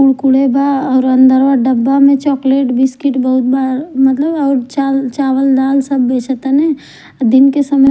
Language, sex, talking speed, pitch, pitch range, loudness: Bhojpuri, female, 135 wpm, 270 Hz, 260-275 Hz, -12 LUFS